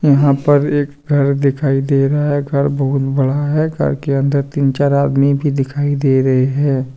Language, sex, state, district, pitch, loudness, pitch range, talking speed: Hindi, male, Jharkhand, Deoghar, 140 Hz, -15 LUFS, 135-145 Hz, 200 wpm